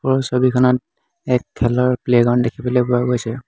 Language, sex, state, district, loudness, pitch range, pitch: Assamese, male, Assam, Hailakandi, -17 LUFS, 120-125 Hz, 125 Hz